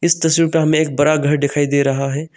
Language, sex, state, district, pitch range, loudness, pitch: Hindi, male, Arunachal Pradesh, Longding, 145-160 Hz, -16 LUFS, 150 Hz